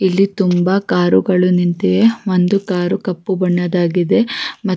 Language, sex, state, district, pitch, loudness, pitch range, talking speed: Kannada, female, Karnataka, Raichur, 185 Hz, -15 LUFS, 180-195 Hz, 115 wpm